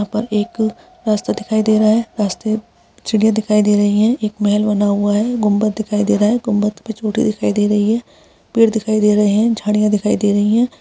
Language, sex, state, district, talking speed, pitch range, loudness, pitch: Hindi, female, Bihar, Darbhanga, 225 wpm, 210-220 Hz, -16 LUFS, 215 Hz